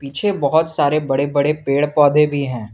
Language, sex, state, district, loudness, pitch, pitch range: Hindi, male, Jharkhand, Garhwa, -17 LUFS, 145 Hz, 140-150 Hz